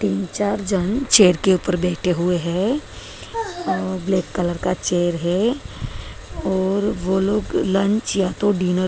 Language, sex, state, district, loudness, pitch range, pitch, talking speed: Hindi, female, Maharashtra, Mumbai Suburban, -20 LUFS, 180-205 Hz, 190 Hz, 155 wpm